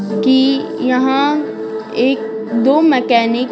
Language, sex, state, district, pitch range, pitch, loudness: Hindi, female, Bihar, Patna, 220-265 Hz, 250 Hz, -14 LUFS